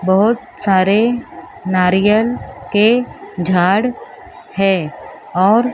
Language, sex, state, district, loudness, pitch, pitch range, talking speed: Hindi, female, Maharashtra, Mumbai Suburban, -15 LUFS, 200 Hz, 185-230 Hz, 75 wpm